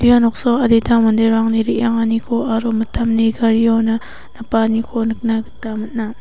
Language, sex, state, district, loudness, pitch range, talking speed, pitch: Garo, female, Meghalaya, West Garo Hills, -16 LUFS, 225-230 Hz, 115 wpm, 225 Hz